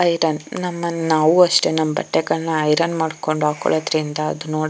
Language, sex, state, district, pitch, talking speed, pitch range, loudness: Kannada, female, Karnataka, Chamarajanagar, 160 Hz, 140 wpm, 155-170 Hz, -19 LUFS